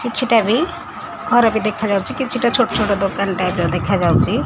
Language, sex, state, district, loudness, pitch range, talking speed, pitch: Odia, female, Odisha, Khordha, -17 LUFS, 190-240 Hz, 200 wpm, 210 Hz